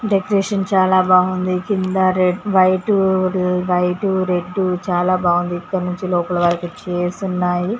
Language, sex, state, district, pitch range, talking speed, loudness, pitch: Telugu, female, Telangana, Karimnagar, 180-190 Hz, 115 wpm, -18 LUFS, 185 Hz